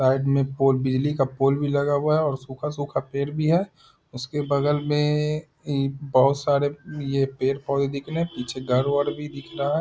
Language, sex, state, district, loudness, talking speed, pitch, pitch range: Hindi, male, Bihar, Muzaffarpur, -24 LUFS, 195 wpm, 140 Hz, 135-150 Hz